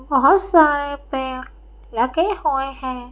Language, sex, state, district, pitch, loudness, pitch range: Hindi, female, Madhya Pradesh, Bhopal, 270 Hz, -19 LUFS, 260-305 Hz